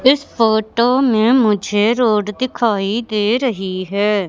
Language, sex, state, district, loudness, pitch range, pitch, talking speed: Hindi, male, Madhya Pradesh, Katni, -16 LUFS, 205-245 Hz, 220 Hz, 125 wpm